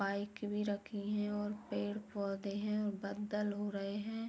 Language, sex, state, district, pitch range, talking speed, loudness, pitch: Hindi, female, Jharkhand, Jamtara, 200-210 Hz, 180 wpm, -39 LUFS, 205 Hz